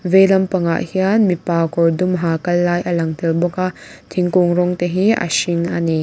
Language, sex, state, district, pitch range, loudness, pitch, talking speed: Mizo, female, Mizoram, Aizawl, 170-185 Hz, -17 LUFS, 175 Hz, 220 wpm